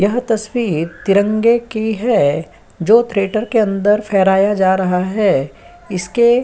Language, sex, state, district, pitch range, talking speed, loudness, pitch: Hindi, female, Uttar Pradesh, Jyotiba Phule Nagar, 190-225 Hz, 150 wpm, -15 LUFS, 205 Hz